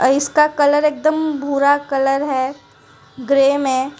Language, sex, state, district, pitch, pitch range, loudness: Hindi, female, Gujarat, Valsad, 280 Hz, 270-295 Hz, -16 LUFS